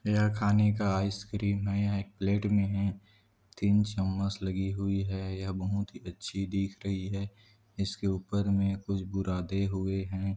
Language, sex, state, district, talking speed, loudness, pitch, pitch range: Hindi, male, Chhattisgarh, Korba, 170 wpm, -31 LUFS, 100 Hz, 95-100 Hz